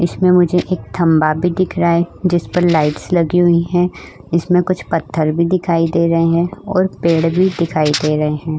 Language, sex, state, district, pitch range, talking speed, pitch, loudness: Hindi, female, Uttar Pradesh, Budaun, 165-180 Hz, 200 wpm, 170 Hz, -15 LUFS